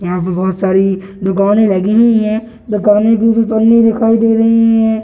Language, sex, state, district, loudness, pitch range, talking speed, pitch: Hindi, male, Bihar, Gaya, -12 LUFS, 195-225 Hz, 190 wpm, 220 Hz